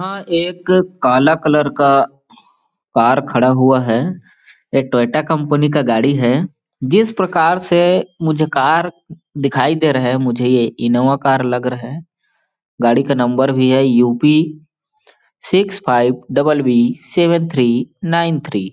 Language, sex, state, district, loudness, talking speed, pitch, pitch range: Hindi, male, Chhattisgarh, Balrampur, -15 LUFS, 150 wpm, 145 Hz, 125-165 Hz